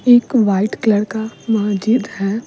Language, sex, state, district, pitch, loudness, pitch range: Hindi, female, Bihar, Patna, 220 Hz, -16 LUFS, 205-235 Hz